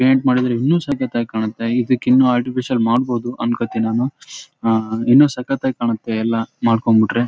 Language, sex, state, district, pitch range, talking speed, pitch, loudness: Kannada, male, Karnataka, Raichur, 115-130 Hz, 60 wpm, 120 Hz, -18 LUFS